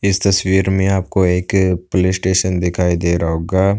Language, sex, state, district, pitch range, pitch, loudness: Hindi, male, Uttar Pradesh, Budaun, 90-95 Hz, 95 Hz, -16 LUFS